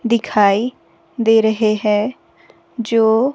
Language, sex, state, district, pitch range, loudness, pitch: Hindi, female, Himachal Pradesh, Shimla, 215-235 Hz, -16 LUFS, 225 Hz